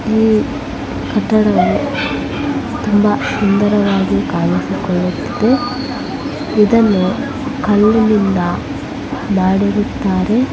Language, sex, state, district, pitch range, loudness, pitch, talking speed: Kannada, female, Karnataka, Bellary, 190-230 Hz, -15 LUFS, 210 Hz, 45 wpm